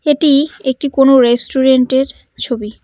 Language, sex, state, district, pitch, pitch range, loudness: Bengali, female, West Bengal, Cooch Behar, 265 Hz, 255-280 Hz, -12 LUFS